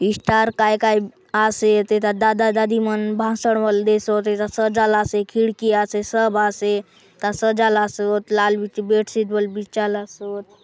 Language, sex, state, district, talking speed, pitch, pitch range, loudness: Halbi, female, Chhattisgarh, Bastar, 145 wpm, 215 Hz, 210-220 Hz, -19 LUFS